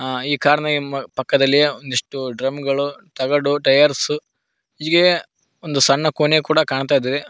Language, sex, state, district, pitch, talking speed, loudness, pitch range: Kannada, male, Karnataka, Koppal, 140 Hz, 150 wpm, -18 LUFS, 135-150 Hz